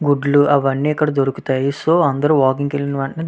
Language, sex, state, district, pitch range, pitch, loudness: Telugu, male, Andhra Pradesh, Visakhapatnam, 135-150 Hz, 145 Hz, -17 LUFS